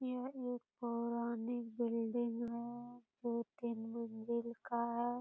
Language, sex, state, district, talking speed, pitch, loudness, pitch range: Hindi, female, Bihar, Purnia, 115 wpm, 235 Hz, -41 LUFS, 235-240 Hz